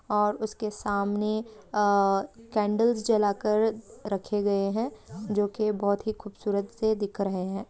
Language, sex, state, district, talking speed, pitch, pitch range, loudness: Hindi, female, Bihar, Samastipur, 150 wpm, 210 Hz, 200-220 Hz, -27 LUFS